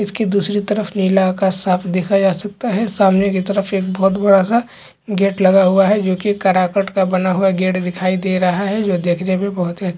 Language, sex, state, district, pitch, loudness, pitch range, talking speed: Hindi, male, Chhattisgarh, Balrampur, 195 Hz, -16 LUFS, 185-200 Hz, 230 wpm